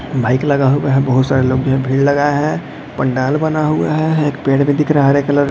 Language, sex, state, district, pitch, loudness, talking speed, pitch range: Hindi, male, Jharkhand, Jamtara, 140 Hz, -15 LUFS, 250 wpm, 135-145 Hz